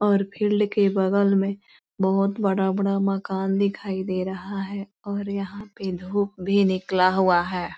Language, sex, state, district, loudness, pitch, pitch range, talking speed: Hindi, female, Bihar, East Champaran, -24 LUFS, 195 Hz, 190-200 Hz, 155 wpm